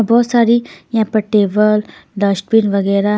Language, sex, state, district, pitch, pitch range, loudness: Hindi, female, Punjab, Pathankot, 215 Hz, 200-225 Hz, -14 LUFS